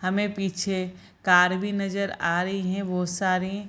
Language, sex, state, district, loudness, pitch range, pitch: Hindi, female, Bihar, Sitamarhi, -25 LUFS, 180-195 Hz, 190 Hz